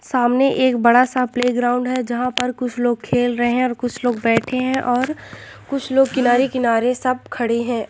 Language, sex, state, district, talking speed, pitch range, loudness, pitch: Hindi, female, Bihar, Gopalganj, 195 wpm, 240-255 Hz, -18 LUFS, 250 Hz